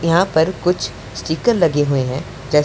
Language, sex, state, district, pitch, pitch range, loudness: Hindi, male, Punjab, Pathankot, 160 Hz, 140-175 Hz, -18 LUFS